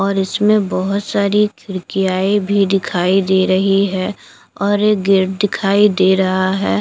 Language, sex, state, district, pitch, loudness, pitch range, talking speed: Hindi, female, Bihar, Katihar, 195 Hz, -15 LUFS, 185-205 Hz, 150 wpm